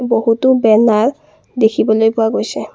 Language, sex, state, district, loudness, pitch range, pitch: Assamese, female, Assam, Kamrup Metropolitan, -13 LUFS, 220-245 Hz, 225 Hz